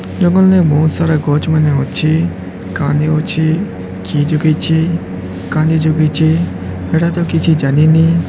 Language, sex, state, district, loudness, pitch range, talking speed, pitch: Odia, male, Odisha, Sambalpur, -13 LUFS, 140-160 Hz, 130 wpm, 155 Hz